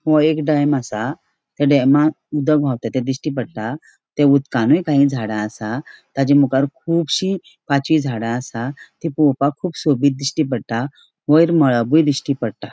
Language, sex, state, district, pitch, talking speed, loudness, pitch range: Konkani, female, Goa, North and South Goa, 140 Hz, 150 wpm, -18 LUFS, 130-155 Hz